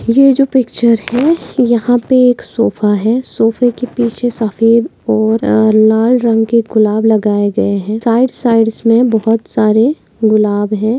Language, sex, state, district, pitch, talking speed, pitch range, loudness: Hindi, female, Maharashtra, Pune, 230 Hz, 155 wpm, 220-245 Hz, -12 LUFS